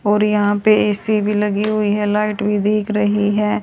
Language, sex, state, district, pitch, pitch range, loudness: Hindi, female, Haryana, Rohtak, 210 Hz, 205-210 Hz, -17 LUFS